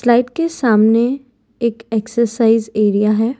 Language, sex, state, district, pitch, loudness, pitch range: Hindi, female, Gujarat, Valsad, 230 Hz, -16 LUFS, 220-245 Hz